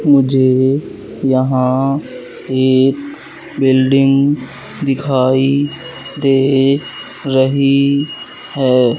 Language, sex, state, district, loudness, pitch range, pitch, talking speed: Hindi, male, Madhya Pradesh, Katni, -14 LUFS, 130-140 Hz, 135 Hz, 55 wpm